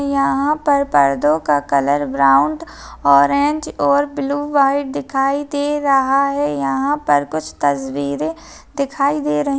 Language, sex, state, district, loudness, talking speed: Hindi, female, Bihar, Kishanganj, -17 LUFS, 130 wpm